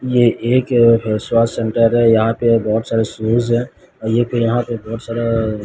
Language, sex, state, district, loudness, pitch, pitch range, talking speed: Hindi, male, Odisha, Sambalpur, -16 LUFS, 115 Hz, 115-120 Hz, 170 wpm